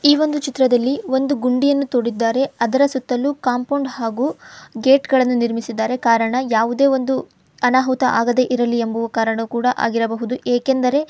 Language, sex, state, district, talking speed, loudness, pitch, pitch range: Kannada, female, Karnataka, Chamarajanagar, 125 wpm, -18 LUFS, 250 Hz, 235-270 Hz